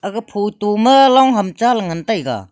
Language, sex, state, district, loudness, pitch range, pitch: Wancho, female, Arunachal Pradesh, Longding, -14 LUFS, 195-245 Hz, 210 Hz